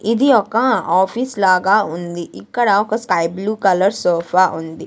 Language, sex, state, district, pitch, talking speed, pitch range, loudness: Telugu, female, Andhra Pradesh, Sri Satya Sai, 195 Hz, 150 wpm, 175-220 Hz, -16 LUFS